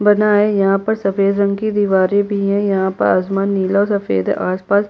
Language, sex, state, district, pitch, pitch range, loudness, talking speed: Hindi, female, Chhattisgarh, Jashpur, 200 Hz, 195-205 Hz, -16 LUFS, 220 wpm